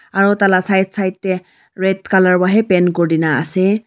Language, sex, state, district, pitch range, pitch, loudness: Nagamese, female, Nagaland, Kohima, 180-195 Hz, 185 Hz, -15 LUFS